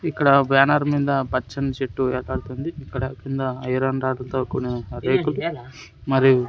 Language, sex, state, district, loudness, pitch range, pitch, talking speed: Telugu, male, Andhra Pradesh, Sri Satya Sai, -22 LUFS, 130-140 Hz, 130 Hz, 120 wpm